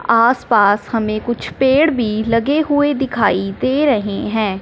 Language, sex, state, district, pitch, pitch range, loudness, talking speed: Hindi, male, Punjab, Fazilka, 230 Hz, 215-270 Hz, -16 LUFS, 155 wpm